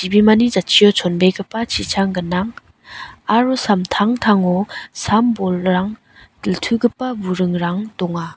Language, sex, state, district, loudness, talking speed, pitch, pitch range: Garo, female, Meghalaya, West Garo Hills, -17 LUFS, 70 wpm, 200 Hz, 180-225 Hz